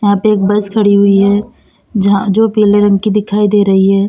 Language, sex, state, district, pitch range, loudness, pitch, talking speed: Hindi, female, Uttar Pradesh, Lalitpur, 200-210 Hz, -11 LUFS, 205 Hz, 235 wpm